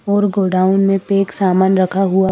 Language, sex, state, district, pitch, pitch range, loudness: Hindi, female, Madhya Pradesh, Bhopal, 195 Hz, 190-195 Hz, -15 LUFS